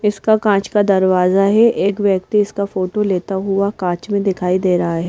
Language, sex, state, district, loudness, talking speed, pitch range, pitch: Hindi, female, Madhya Pradesh, Bhopal, -16 LUFS, 200 wpm, 185-205 Hz, 195 Hz